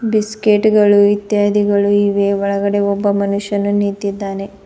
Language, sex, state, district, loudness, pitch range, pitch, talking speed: Kannada, female, Karnataka, Bidar, -15 LUFS, 200-205 Hz, 205 Hz, 90 wpm